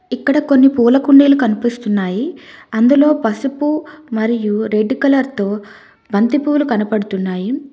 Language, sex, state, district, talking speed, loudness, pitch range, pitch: Telugu, female, Telangana, Hyderabad, 100 wpm, -15 LUFS, 215-280 Hz, 245 Hz